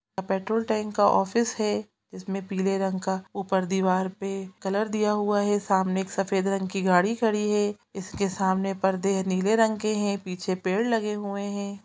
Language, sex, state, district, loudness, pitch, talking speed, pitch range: Hindi, female, Chhattisgarh, Sukma, -26 LUFS, 195 Hz, 180 wpm, 190-210 Hz